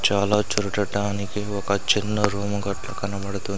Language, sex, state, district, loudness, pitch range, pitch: Telugu, male, Andhra Pradesh, Sri Satya Sai, -24 LUFS, 100-105 Hz, 100 Hz